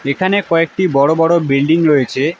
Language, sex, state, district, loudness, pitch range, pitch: Bengali, female, West Bengal, Alipurduar, -13 LUFS, 140-175 Hz, 165 Hz